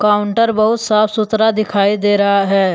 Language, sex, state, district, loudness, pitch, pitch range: Hindi, male, Jharkhand, Deoghar, -14 LUFS, 210 Hz, 200-220 Hz